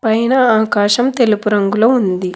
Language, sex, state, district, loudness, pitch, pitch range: Telugu, female, Telangana, Hyderabad, -13 LUFS, 220 Hz, 205-240 Hz